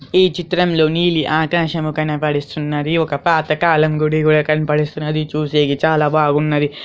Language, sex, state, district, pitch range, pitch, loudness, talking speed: Telugu, female, Andhra Pradesh, Anantapur, 150-160 Hz, 155 Hz, -16 LUFS, 125 wpm